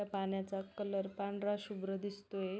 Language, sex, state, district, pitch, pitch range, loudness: Marathi, female, Maharashtra, Pune, 200 Hz, 195-205 Hz, -40 LUFS